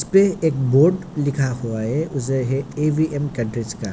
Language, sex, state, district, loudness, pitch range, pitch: Hindi, male, Bihar, Kishanganj, -20 LUFS, 125-155 Hz, 140 Hz